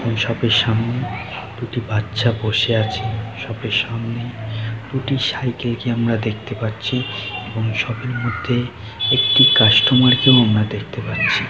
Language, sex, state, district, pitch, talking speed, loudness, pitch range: Bengali, male, West Bengal, Jhargram, 115 Hz, 135 wpm, -18 LUFS, 110-125 Hz